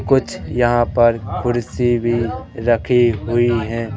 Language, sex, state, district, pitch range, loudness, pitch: Hindi, male, Madhya Pradesh, Katni, 110-120 Hz, -17 LUFS, 120 Hz